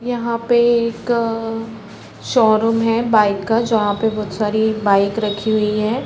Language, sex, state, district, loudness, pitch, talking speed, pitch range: Hindi, female, Chhattisgarh, Raigarh, -17 LUFS, 225 Hz, 160 wpm, 215-230 Hz